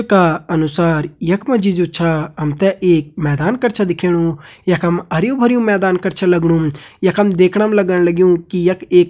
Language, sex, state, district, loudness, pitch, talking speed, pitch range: Hindi, male, Uttarakhand, Uttarkashi, -15 LUFS, 180 Hz, 205 wpm, 170-195 Hz